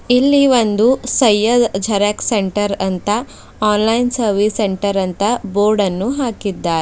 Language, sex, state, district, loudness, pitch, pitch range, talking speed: Kannada, female, Karnataka, Bidar, -15 LUFS, 210 Hz, 200-240 Hz, 105 wpm